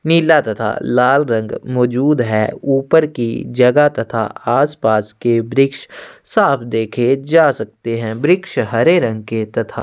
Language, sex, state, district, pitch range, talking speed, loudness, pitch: Hindi, male, Chhattisgarh, Sukma, 110-150 Hz, 140 wpm, -15 LUFS, 125 Hz